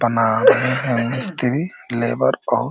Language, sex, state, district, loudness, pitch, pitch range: Hindi, male, Uttar Pradesh, Ghazipur, -19 LUFS, 125 Hz, 120-130 Hz